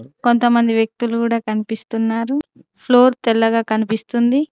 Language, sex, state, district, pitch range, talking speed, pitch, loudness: Telugu, female, Telangana, Mahabubabad, 225-240 Hz, 95 wpm, 230 Hz, -17 LUFS